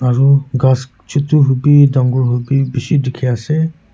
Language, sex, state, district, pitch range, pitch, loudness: Nagamese, male, Nagaland, Kohima, 130-145 Hz, 130 Hz, -14 LUFS